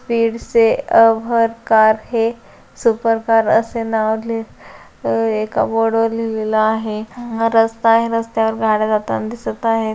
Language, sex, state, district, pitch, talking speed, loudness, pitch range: Marathi, female, Maharashtra, Solapur, 225 Hz, 140 wpm, -17 LUFS, 220-230 Hz